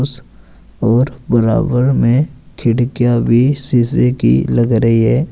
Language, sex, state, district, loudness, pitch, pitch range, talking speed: Hindi, male, Uttar Pradesh, Saharanpur, -14 LUFS, 120 Hz, 115-130 Hz, 115 wpm